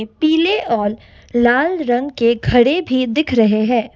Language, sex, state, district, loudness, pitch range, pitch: Hindi, female, Assam, Kamrup Metropolitan, -16 LUFS, 230-300 Hz, 245 Hz